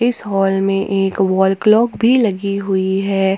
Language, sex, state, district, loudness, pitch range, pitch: Hindi, female, Jharkhand, Ranchi, -16 LUFS, 195-210 Hz, 195 Hz